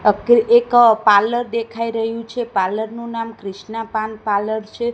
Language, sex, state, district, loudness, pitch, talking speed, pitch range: Gujarati, female, Gujarat, Gandhinagar, -18 LUFS, 225 Hz, 145 wpm, 215-235 Hz